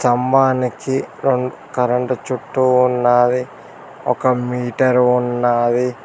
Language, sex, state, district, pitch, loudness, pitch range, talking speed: Telugu, male, Telangana, Mahabubabad, 125 Hz, -17 LUFS, 125-130 Hz, 70 wpm